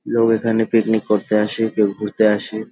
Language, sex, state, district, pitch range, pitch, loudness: Bengali, male, West Bengal, Dakshin Dinajpur, 105-115 Hz, 110 Hz, -18 LUFS